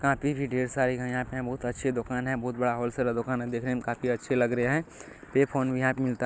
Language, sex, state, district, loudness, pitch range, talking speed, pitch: Hindi, male, Bihar, Kishanganj, -29 LUFS, 120-130 Hz, 285 wpm, 125 Hz